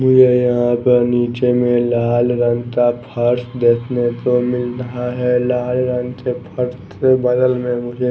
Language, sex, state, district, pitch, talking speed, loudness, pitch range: Hindi, male, Bihar, West Champaran, 125 Hz, 155 wpm, -16 LUFS, 120-125 Hz